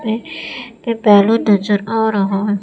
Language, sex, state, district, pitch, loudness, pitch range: Hindi, female, Madhya Pradesh, Umaria, 210 Hz, -15 LUFS, 205-225 Hz